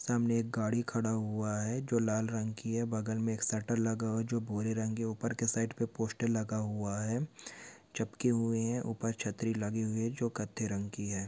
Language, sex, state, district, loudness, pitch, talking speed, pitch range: Hindi, male, Chhattisgarh, Sukma, -34 LUFS, 115 Hz, 235 wpm, 110-115 Hz